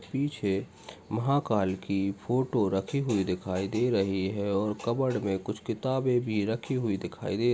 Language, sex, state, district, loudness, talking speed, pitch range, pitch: Hindi, male, Chhattisgarh, Bastar, -29 LUFS, 175 wpm, 100-125 Hz, 105 Hz